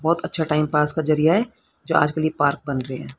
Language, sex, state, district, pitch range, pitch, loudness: Hindi, female, Haryana, Rohtak, 145-160 Hz, 155 Hz, -21 LUFS